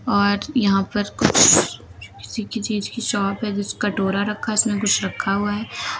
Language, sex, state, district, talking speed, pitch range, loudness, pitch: Hindi, female, Uttar Pradesh, Lucknow, 160 wpm, 200-220 Hz, -20 LUFS, 205 Hz